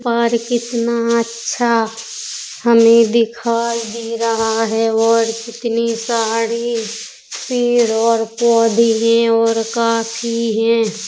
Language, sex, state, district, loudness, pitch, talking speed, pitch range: Hindi, female, Uttar Pradesh, Jalaun, -16 LUFS, 230 Hz, 95 wpm, 225-235 Hz